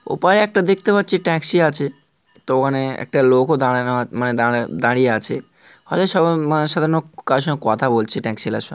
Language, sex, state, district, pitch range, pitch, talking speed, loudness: Bengali, male, West Bengal, North 24 Parganas, 125-160 Hz, 135 Hz, 155 wpm, -17 LUFS